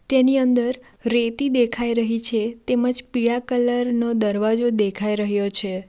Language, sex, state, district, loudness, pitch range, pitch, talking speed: Gujarati, female, Gujarat, Valsad, -20 LUFS, 215-245 Hz, 235 Hz, 145 wpm